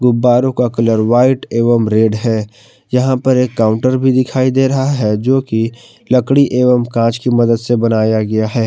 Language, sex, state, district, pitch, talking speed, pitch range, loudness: Hindi, male, Jharkhand, Palamu, 120 Hz, 185 wpm, 115-130 Hz, -13 LUFS